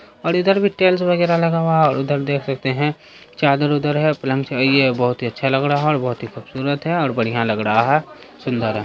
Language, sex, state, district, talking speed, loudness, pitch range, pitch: Hindi, male, Bihar, Saharsa, 250 wpm, -18 LUFS, 125-155 Hz, 140 Hz